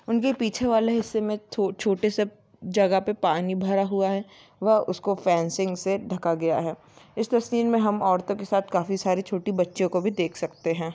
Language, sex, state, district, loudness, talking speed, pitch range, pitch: Hindi, female, Maharashtra, Sindhudurg, -25 LUFS, 205 wpm, 180-210 Hz, 195 Hz